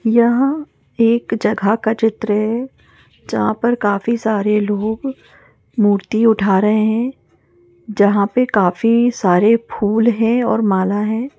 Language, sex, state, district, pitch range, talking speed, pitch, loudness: Hindi, female, Chhattisgarh, Bastar, 205-235 Hz, 120 wpm, 220 Hz, -16 LUFS